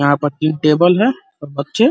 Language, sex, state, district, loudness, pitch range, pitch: Hindi, male, Uttar Pradesh, Ghazipur, -15 LUFS, 145-220 Hz, 155 Hz